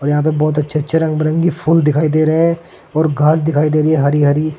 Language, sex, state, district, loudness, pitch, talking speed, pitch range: Hindi, male, Uttar Pradesh, Saharanpur, -14 LUFS, 155 Hz, 260 wpm, 150-160 Hz